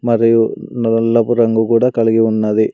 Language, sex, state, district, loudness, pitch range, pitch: Telugu, male, Andhra Pradesh, Sri Satya Sai, -14 LUFS, 110-115 Hz, 115 Hz